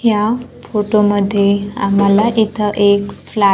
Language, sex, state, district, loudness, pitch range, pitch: Marathi, female, Maharashtra, Gondia, -15 LUFS, 200-215 Hz, 205 Hz